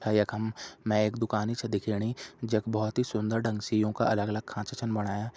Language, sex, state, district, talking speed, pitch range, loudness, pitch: Hindi, male, Uttarakhand, Tehri Garhwal, 190 wpm, 105-115 Hz, -30 LUFS, 110 Hz